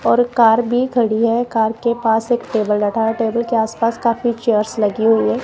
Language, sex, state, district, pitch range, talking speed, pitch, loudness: Hindi, female, Punjab, Kapurthala, 220-235 Hz, 220 wpm, 230 Hz, -17 LUFS